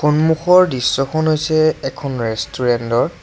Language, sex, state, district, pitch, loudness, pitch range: Assamese, male, Assam, Sonitpur, 150 Hz, -16 LUFS, 125-155 Hz